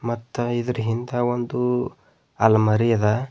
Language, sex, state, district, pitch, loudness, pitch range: Kannada, male, Karnataka, Bidar, 120 Hz, -22 LUFS, 115-125 Hz